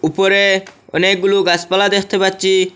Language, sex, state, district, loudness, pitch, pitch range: Bengali, male, Assam, Hailakandi, -14 LUFS, 190 Hz, 185-195 Hz